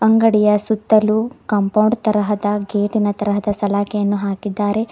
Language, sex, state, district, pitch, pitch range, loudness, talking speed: Kannada, female, Karnataka, Bidar, 210 Hz, 205-215 Hz, -17 LUFS, 95 wpm